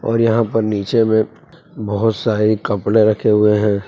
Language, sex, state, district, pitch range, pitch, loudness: Hindi, male, Jharkhand, Palamu, 105-115 Hz, 110 Hz, -16 LUFS